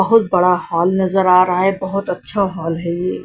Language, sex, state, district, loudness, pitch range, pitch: Hindi, female, Punjab, Kapurthala, -16 LUFS, 170-190 Hz, 180 Hz